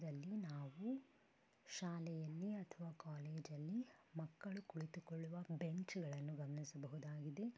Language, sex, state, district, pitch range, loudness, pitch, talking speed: Kannada, female, Karnataka, Bellary, 150-185 Hz, -50 LUFS, 165 Hz, 95 wpm